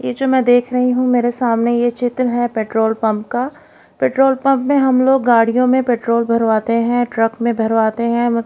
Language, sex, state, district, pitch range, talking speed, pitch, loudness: Hindi, female, Haryana, Jhajjar, 230-255 Hz, 190 wpm, 240 Hz, -15 LUFS